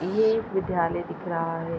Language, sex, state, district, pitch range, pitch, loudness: Hindi, female, Uttar Pradesh, Jyotiba Phule Nagar, 165-190 Hz, 175 Hz, -26 LUFS